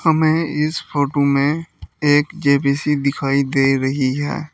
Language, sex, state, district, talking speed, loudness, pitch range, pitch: Hindi, male, Uttar Pradesh, Saharanpur, 130 wpm, -18 LUFS, 140-150 Hz, 145 Hz